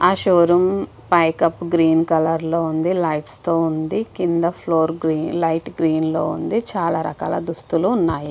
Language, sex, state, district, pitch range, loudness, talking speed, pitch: Telugu, female, Andhra Pradesh, Visakhapatnam, 160-175 Hz, -19 LUFS, 165 wpm, 165 Hz